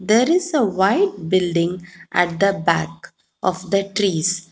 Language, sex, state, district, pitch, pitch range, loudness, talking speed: English, female, Telangana, Hyderabad, 185 Hz, 170-200 Hz, -19 LUFS, 145 wpm